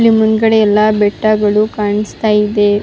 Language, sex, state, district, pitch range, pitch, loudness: Kannada, female, Karnataka, Raichur, 210-220 Hz, 215 Hz, -12 LUFS